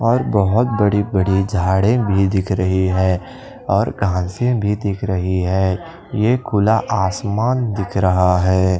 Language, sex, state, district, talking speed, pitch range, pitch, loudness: Hindi, male, Bihar, Kaimur, 135 wpm, 95-110 Hz, 100 Hz, -17 LUFS